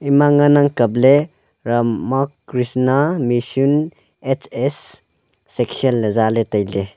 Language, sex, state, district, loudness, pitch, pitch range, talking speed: Wancho, male, Arunachal Pradesh, Longding, -17 LUFS, 130 Hz, 115-145 Hz, 105 wpm